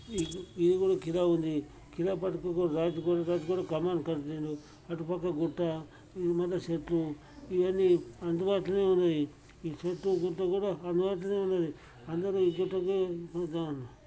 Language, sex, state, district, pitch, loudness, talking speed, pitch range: Telugu, male, Telangana, Karimnagar, 175 Hz, -31 LUFS, 120 wpm, 165-185 Hz